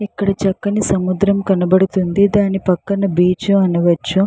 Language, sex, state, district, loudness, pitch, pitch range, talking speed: Telugu, female, Andhra Pradesh, Chittoor, -15 LUFS, 195 Hz, 185-200 Hz, 110 wpm